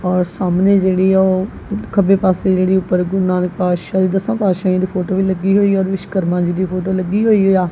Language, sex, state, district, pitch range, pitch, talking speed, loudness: Punjabi, female, Punjab, Kapurthala, 185-195 Hz, 190 Hz, 195 wpm, -16 LUFS